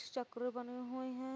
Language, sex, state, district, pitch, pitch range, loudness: Hindi, female, Uttar Pradesh, Varanasi, 250 Hz, 245-260 Hz, -43 LUFS